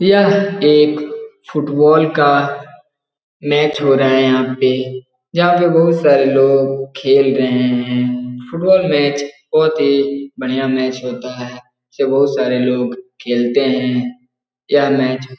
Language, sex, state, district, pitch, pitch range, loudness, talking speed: Hindi, male, Bihar, Jahanabad, 135 Hz, 125-150 Hz, -14 LUFS, 150 wpm